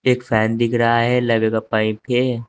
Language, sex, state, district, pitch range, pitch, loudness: Hindi, male, Uttar Pradesh, Saharanpur, 110-125 Hz, 115 Hz, -18 LUFS